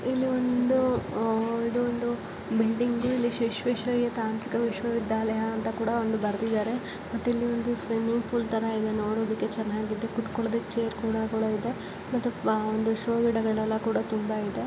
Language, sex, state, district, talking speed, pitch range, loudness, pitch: Kannada, female, Karnataka, Gulbarga, 100 wpm, 220-240 Hz, -28 LUFS, 225 Hz